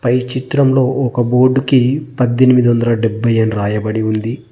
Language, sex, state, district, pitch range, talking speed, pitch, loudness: Telugu, male, Telangana, Mahabubabad, 115-130 Hz, 120 wpm, 125 Hz, -14 LUFS